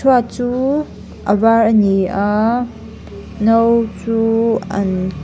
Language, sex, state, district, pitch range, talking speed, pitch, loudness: Mizo, female, Mizoram, Aizawl, 200-235 Hz, 115 wpm, 225 Hz, -15 LUFS